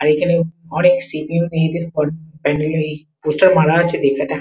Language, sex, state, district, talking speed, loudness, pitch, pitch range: Bengali, female, West Bengal, Kolkata, 120 wpm, -17 LUFS, 160 Hz, 150-170 Hz